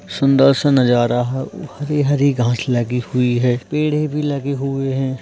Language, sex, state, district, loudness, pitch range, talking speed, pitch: Hindi, male, Uttarakhand, Uttarkashi, -17 LUFS, 125-145 Hz, 170 wpm, 135 Hz